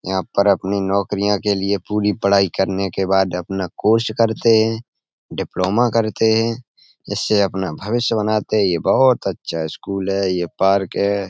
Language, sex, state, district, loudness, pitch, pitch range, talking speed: Hindi, male, Uttar Pradesh, Etah, -18 LUFS, 100 Hz, 95-110 Hz, 165 wpm